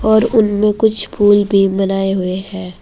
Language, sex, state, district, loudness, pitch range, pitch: Hindi, female, Uttar Pradesh, Saharanpur, -14 LUFS, 195-215 Hz, 200 Hz